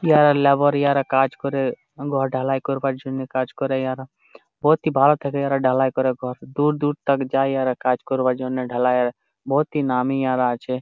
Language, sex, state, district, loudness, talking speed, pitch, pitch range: Bengali, male, Jharkhand, Jamtara, -21 LUFS, 185 wpm, 135 Hz, 130-140 Hz